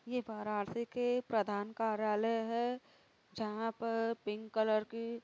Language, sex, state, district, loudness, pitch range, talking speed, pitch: Hindi, female, Uttar Pradesh, Varanasi, -37 LUFS, 215-235 Hz, 125 wpm, 225 Hz